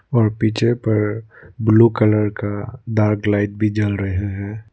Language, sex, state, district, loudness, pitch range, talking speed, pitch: Hindi, male, Arunachal Pradesh, Lower Dibang Valley, -18 LUFS, 105-110 Hz, 150 wpm, 105 Hz